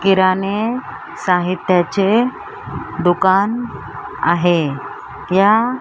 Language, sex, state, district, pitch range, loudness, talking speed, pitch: Marathi, female, Maharashtra, Mumbai Suburban, 180-210 Hz, -16 LUFS, 60 wpm, 190 Hz